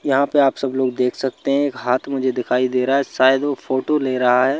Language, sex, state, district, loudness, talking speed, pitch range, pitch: Hindi, male, Madhya Pradesh, Bhopal, -19 LUFS, 275 wpm, 130-140 Hz, 130 Hz